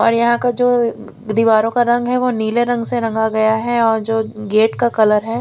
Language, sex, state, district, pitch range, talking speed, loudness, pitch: Hindi, female, Punjab, Fazilka, 220-240 Hz, 235 wpm, -16 LUFS, 230 Hz